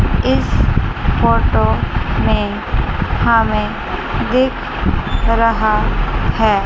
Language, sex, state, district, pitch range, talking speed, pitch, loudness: Hindi, female, Chandigarh, Chandigarh, 215-235 Hz, 65 wpm, 230 Hz, -16 LUFS